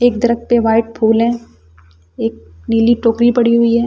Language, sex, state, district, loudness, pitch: Hindi, female, Delhi, New Delhi, -14 LUFS, 230 Hz